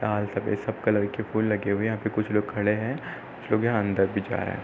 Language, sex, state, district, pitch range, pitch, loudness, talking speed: Hindi, male, Uttar Pradesh, Hamirpur, 105-110 Hz, 105 Hz, -26 LUFS, 295 wpm